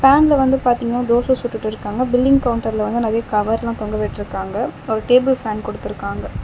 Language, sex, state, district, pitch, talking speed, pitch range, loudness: Tamil, female, Tamil Nadu, Chennai, 235 Hz, 150 wpm, 220-255 Hz, -18 LUFS